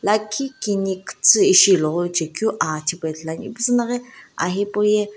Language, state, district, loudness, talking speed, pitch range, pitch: Sumi, Nagaland, Dimapur, -19 LUFS, 140 wpm, 175-230 Hz, 205 Hz